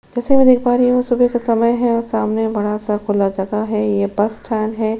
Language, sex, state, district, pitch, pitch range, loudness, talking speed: Hindi, female, Chhattisgarh, Sukma, 220 Hz, 210-245 Hz, -16 LUFS, 255 wpm